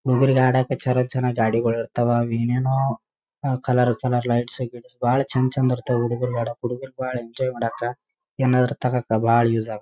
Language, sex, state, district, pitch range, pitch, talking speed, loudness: Kannada, male, Karnataka, Raichur, 120-130 Hz, 125 Hz, 145 wpm, -22 LUFS